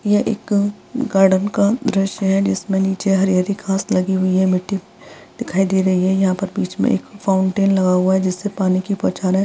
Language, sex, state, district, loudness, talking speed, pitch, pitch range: Hindi, female, Bihar, Vaishali, -18 LUFS, 195 wpm, 195 Hz, 190-200 Hz